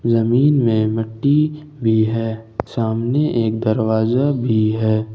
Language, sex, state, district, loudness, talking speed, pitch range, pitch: Hindi, male, Jharkhand, Ranchi, -18 LUFS, 115 wpm, 110-130 Hz, 115 Hz